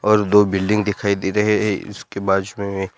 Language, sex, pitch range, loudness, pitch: Hindi, male, 95-105 Hz, -19 LUFS, 100 Hz